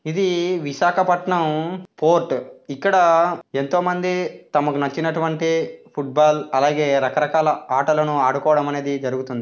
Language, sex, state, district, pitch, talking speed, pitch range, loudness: Telugu, male, Andhra Pradesh, Visakhapatnam, 155 Hz, 85 wpm, 145-175 Hz, -20 LUFS